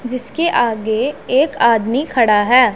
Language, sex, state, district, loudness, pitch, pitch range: Hindi, female, Punjab, Pathankot, -15 LUFS, 245 Hz, 230-275 Hz